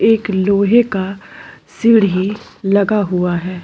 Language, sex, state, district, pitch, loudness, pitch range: Hindi, female, Uttarakhand, Tehri Garhwal, 200 Hz, -15 LUFS, 185-210 Hz